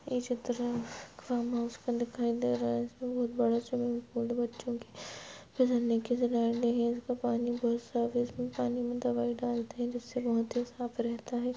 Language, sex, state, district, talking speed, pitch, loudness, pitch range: Hindi, female, Chhattisgarh, Bastar, 140 wpm, 240 Hz, -33 LUFS, 235-245 Hz